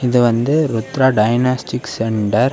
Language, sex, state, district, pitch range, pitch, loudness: Tamil, male, Tamil Nadu, Kanyakumari, 115-130 Hz, 125 Hz, -16 LUFS